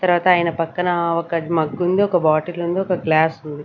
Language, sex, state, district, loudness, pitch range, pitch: Telugu, female, Andhra Pradesh, Sri Satya Sai, -19 LUFS, 160-180 Hz, 170 Hz